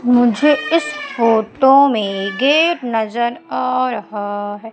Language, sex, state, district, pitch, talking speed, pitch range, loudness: Hindi, female, Madhya Pradesh, Umaria, 245 Hz, 115 wpm, 220-285 Hz, -16 LUFS